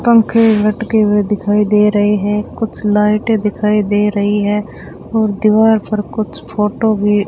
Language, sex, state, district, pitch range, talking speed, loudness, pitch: Hindi, female, Rajasthan, Bikaner, 210-220 Hz, 165 wpm, -14 LUFS, 210 Hz